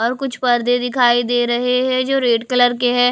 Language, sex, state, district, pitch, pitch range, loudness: Hindi, female, Odisha, Khordha, 245 Hz, 240-250 Hz, -16 LUFS